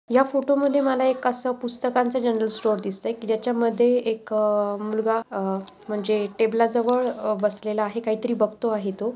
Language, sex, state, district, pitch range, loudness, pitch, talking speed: Marathi, female, Maharashtra, Aurangabad, 215-245 Hz, -24 LUFS, 225 Hz, 175 wpm